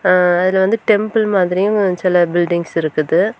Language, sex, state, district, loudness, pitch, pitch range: Tamil, female, Tamil Nadu, Kanyakumari, -15 LUFS, 185 Hz, 175-200 Hz